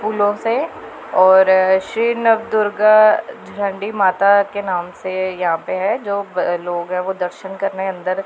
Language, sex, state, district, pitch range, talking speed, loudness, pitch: Hindi, female, Punjab, Pathankot, 185-205 Hz, 165 wpm, -17 LUFS, 190 Hz